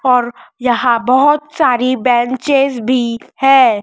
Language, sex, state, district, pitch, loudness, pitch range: Hindi, male, Madhya Pradesh, Dhar, 255 Hz, -13 LUFS, 240-270 Hz